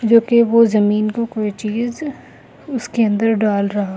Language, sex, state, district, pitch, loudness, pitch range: Hindi, female, Delhi, New Delhi, 225 Hz, -17 LUFS, 210-235 Hz